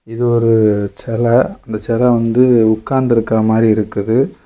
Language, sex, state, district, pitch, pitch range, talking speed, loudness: Tamil, male, Tamil Nadu, Kanyakumari, 115 Hz, 110-120 Hz, 120 wpm, -14 LUFS